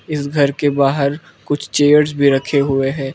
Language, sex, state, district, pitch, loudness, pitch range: Hindi, male, Arunachal Pradesh, Lower Dibang Valley, 140 Hz, -16 LUFS, 140-145 Hz